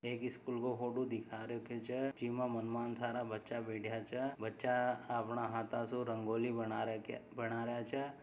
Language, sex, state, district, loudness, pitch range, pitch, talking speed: Marwari, male, Rajasthan, Nagaur, -40 LUFS, 115-125 Hz, 120 Hz, 155 wpm